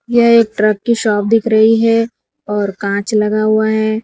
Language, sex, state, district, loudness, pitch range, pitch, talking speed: Hindi, female, Gujarat, Valsad, -13 LUFS, 210-230 Hz, 220 Hz, 195 wpm